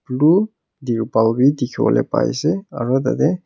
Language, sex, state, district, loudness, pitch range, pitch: Nagamese, male, Nagaland, Kohima, -18 LUFS, 125-160 Hz, 135 Hz